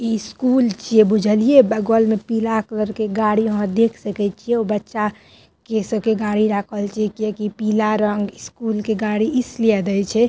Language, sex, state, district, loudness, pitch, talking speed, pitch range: Maithili, female, Bihar, Madhepura, -19 LUFS, 215 Hz, 205 wpm, 210-225 Hz